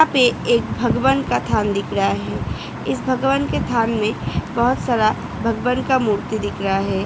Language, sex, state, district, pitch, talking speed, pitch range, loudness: Hindi, female, Uttar Pradesh, Hamirpur, 230 Hz, 185 wpm, 200-255 Hz, -20 LUFS